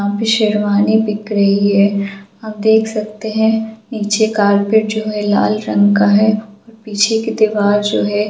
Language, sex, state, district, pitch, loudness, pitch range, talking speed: Hindi, female, Jharkhand, Jamtara, 215 Hz, -14 LUFS, 205-220 Hz, 160 wpm